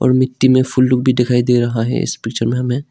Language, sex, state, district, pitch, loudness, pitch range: Hindi, male, Arunachal Pradesh, Lower Dibang Valley, 125 Hz, -15 LUFS, 120-130 Hz